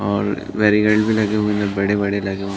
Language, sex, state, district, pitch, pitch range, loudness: Hindi, male, Chhattisgarh, Balrampur, 100 Hz, 100-105 Hz, -18 LUFS